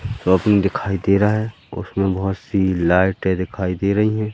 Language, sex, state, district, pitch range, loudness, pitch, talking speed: Hindi, male, Madhya Pradesh, Katni, 95-105 Hz, -19 LUFS, 95 Hz, 180 wpm